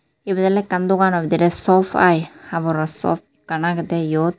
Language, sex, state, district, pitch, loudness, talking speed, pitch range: Chakma, female, Tripura, Unakoti, 170 Hz, -19 LUFS, 165 wpm, 160-185 Hz